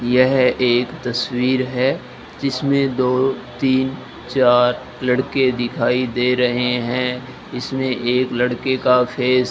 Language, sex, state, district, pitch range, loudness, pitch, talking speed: Hindi, male, Rajasthan, Bikaner, 125-130 Hz, -18 LUFS, 125 Hz, 120 wpm